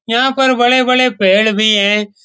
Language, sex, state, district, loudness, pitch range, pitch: Hindi, male, Bihar, Saran, -11 LUFS, 210-255 Hz, 230 Hz